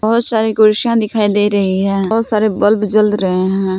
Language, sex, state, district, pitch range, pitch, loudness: Hindi, female, Jharkhand, Palamu, 195-220 Hz, 210 Hz, -13 LUFS